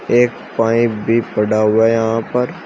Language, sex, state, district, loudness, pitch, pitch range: Hindi, male, Uttar Pradesh, Shamli, -16 LUFS, 115 Hz, 110-120 Hz